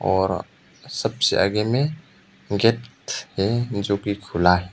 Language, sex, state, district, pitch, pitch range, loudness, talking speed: Hindi, male, Arunachal Pradesh, Papum Pare, 100 Hz, 95-115 Hz, -23 LUFS, 115 wpm